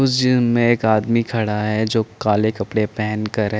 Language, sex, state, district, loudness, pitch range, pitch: Hindi, male, Chandigarh, Chandigarh, -19 LUFS, 105-120 Hz, 110 Hz